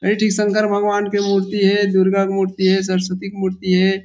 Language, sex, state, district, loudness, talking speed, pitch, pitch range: Chhattisgarhi, male, Chhattisgarh, Rajnandgaon, -17 LUFS, 210 wpm, 195 Hz, 190-205 Hz